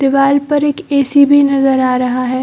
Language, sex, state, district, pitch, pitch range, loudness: Hindi, female, Bihar, Samastipur, 275 Hz, 260-285 Hz, -12 LUFS